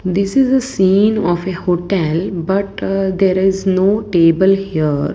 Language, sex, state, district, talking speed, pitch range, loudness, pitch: English, female, Gujarat, Valsad, 165 wpm, 175-195 Hz, -15 LUFS, 190 Hz